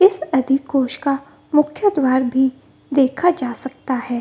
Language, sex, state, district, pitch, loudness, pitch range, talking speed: Hindi, female, Bihar, Gopalganj, 270 Hz, -19 LUFS, 260-300 Hz, 130 wpm